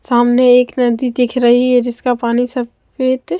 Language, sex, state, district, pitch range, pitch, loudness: Hindi, female, Maharashtra, Mumbai Suburban, 240-250 Hz, 245 Hz, -14 LUFS